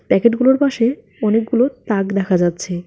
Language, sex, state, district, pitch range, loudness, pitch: Bengali, female, West Bengal, Alipurduar, 195-250 Hz, -17 LUFS, 225 Hz